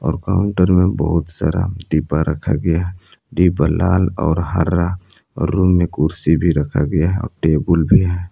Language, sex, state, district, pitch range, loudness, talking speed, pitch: Hindi, male, Jharkhand, Palamu, 80-90 Hz, -17 LUFS, 175 wpm, 85 Hz